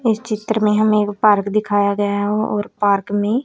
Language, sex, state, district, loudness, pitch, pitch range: Hindi, female, Haryana, Rohtak, -17 LUFS, 210 Hz, 205-215 Hz